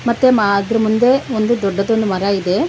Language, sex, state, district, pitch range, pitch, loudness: Kannada, female, Karnataka, Bangalore, 200-240 Hz, 220 Hz, -15 LUFS